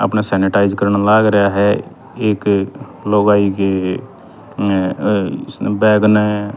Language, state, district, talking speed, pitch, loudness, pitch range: Haryanvi, Haryana, Rohtak, 130 wpm, 100 Hz, -15 LUFS, 100-105 Hz